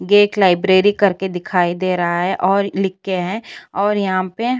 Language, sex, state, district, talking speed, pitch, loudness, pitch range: Hindi, female, Uttar Pradesh, Jyotiba Phule Nagar, 180 wpm, 190 Hz, -17 LUFS, 185-205 Hz